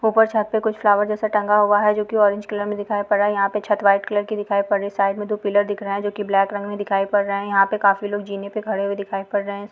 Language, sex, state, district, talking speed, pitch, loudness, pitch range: Hindi, female, Bihar, Jahanabad, 340 wpm, 205 Hz, -20 LUFS, 200-210 Hz